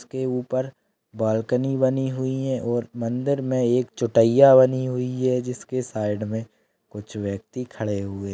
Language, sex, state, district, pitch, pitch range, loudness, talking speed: Hindi, male, Maharashtra, Solapur, 125 Hz, 110-130 Hz, -23 LUFS, 150 wpm